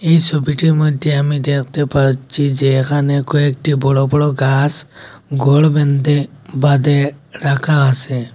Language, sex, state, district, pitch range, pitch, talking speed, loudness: Bengali, male, Assam, Hailakandi, 135-150 Hz, 145 Hz, 120 wpm, -14 LUFS